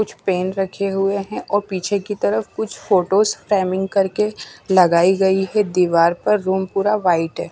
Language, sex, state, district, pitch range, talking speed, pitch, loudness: Hindi, female, Punjab, Kapurthala, 185-205 Hz, 175 wpm, 195 Hz, -18 LUFS